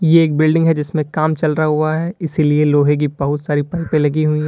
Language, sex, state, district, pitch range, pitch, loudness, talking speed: Hindi, male, Uttar Pradesh, Lalitpur, 150-160 Hz, 155 Hz, -16 LUFS, 255 wpm